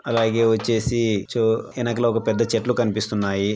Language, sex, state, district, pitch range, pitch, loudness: Telugu, male, Andhra Pradesh, Anantapur, 110-120 Hz, 115 Hz, -21 LUFS